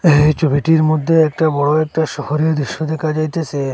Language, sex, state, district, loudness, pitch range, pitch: Bengali, male, Assam, Hailakandi, -16 LUFS, 145-160 Hz, 155 Hz